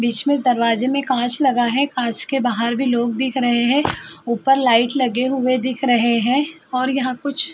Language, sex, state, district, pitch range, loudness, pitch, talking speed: Hindi, female, Uttar Pradesh, Muzaffarnagar, 240-270 Hz, -17 LUFS, 255 Hz, 205 wpm